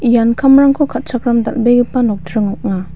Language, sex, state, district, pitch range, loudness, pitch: Garo, female, Meghalaya, West Garo Hills, 220-250 Hz, -13 LUFS, 240 Hz